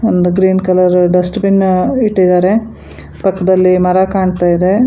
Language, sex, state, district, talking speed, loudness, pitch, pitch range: Kannada, female, Karnataka, Bangalore, 125 wpm, -11 LUFS, 185 Hz, 180-195 Hz